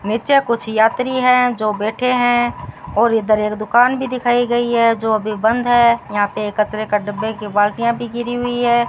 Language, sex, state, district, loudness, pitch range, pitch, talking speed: Hindi, female, Rajasthan, Bikaner, -16 LUFS, 215-245 Hz, 235 Hz, 210 wpm